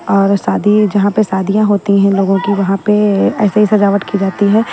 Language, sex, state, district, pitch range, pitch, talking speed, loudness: Hindi, female, Haryana, Jhajjar, 195-210 Hz, 200 Hz, 230 wpm, -12 LUFS